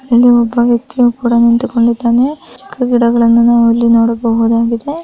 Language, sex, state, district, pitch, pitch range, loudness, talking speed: Kannada, female, Karnataka, Raichur, 235 Hz, 235-245 Hz, -11 LUFS, 120 wpm